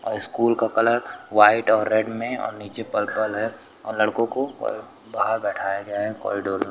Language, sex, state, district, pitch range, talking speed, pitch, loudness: Hindi, male, Uttar Pradesh, Lucknow, 105-115 Hz, 195 wpm, 110 Hz, -22 LUFS